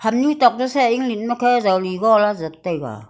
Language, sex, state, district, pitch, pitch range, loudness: Wancho, female, Arunachal Pradesh, Longding, 220 Hz, 185-245 Hz, -18 LUFS